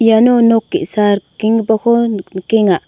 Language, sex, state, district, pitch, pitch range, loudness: Garo, female, Meghalaya, North Garo Hills, 220 Hz, 205-230 Hz, -13 LUFS